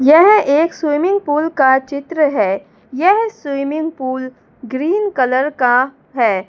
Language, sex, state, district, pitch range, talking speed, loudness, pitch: Hindi, female, Delhi, New Delhi, 260-320 Hz, 130 wpm, -15 LUFS, 285 Hz